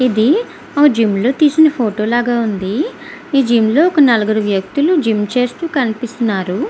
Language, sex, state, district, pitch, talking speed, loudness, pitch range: Telugu, female, Andhra Pradesh, Visakhapatnam, 245 Hz, 135 wpm, -14 LUFS, 220-295 Hz